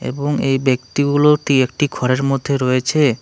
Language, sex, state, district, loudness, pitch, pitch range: Bengali, male, West Bengal, Alipurduar, -17 LUFS, 135 Hz, 130-145 Hz